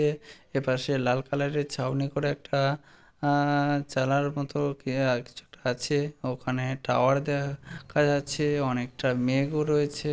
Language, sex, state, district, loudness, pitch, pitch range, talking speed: Bengali, male, West Bengal, Malda, -28 LUFS, 140 Hz, 130-145 Hz, 130 wpm